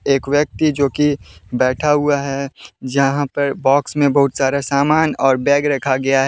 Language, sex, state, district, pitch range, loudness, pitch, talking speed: Hindi, male, Jharkhand, Deoghar, 135-145 Hz, -17 LUFS, 140 Hz, 170 wpm